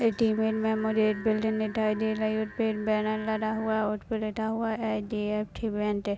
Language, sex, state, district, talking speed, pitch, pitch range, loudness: Hindi, male, Maharashtra, Solapur, 250 wpm, 220 Hz, 215-220 Hz, -28 LUFS